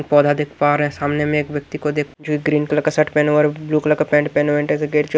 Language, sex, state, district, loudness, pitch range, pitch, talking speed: Hindi, male, Maharashtra, Washim, -18 LUFS, 145-150 Hz, 150 Hz, 345 wpm